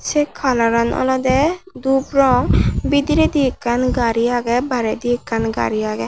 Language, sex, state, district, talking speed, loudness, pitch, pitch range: Chakma, male, Tripura, Unakoti, 140 wpm, -17 LUFS, 255 Hz, 235-275 Hz